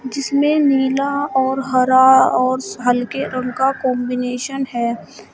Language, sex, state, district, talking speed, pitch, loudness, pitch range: Hindi, female, Uttar Pradesh, Shamli, 110 wpm, 265 Hz, -17 LUFS, 250-270 Hz